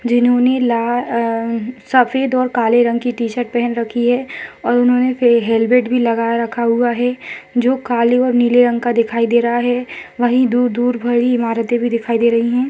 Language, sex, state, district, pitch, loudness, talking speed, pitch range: Hindi, female, Rajasthan, Nagaur, 240 Hz, -15 LUFS, 185 wpm, 235-245 Hz